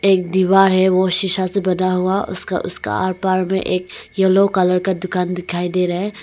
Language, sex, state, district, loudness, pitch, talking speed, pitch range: Hindi, female, Arunachal Pradesh, Longding, -17 LUFS, 185 Hz, 210 wpm, 180-190 Hz